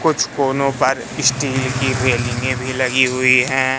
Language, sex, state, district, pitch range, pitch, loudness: Hindi, male, Madhya Pradesh, Katni, 130-135 Hz, 130 Hz, -17 LUFS